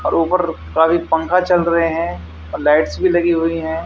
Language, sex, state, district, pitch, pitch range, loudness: Hindi, male, Haryana, Charkhi Dadri, 165 Hz, 160-170 Hz, -16 LUFS